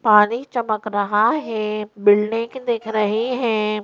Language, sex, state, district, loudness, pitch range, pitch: Hindi, female, Madhya Pradesh, Bhopal, -20 LUFS, 210-235 Hz, 215 Hz